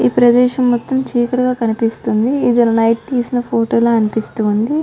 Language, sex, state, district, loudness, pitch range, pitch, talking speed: Telugu, female, Telangana, Karimnagar, -15 LUFS, 225-250 Hz, 235 Hz, 125 wpm